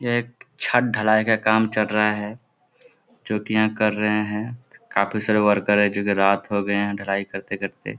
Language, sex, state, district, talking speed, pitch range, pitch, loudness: Hindi, male, Bihar, Supaul, 240 wpm, 100-110 Hz, 105 Hz, -21 LUFS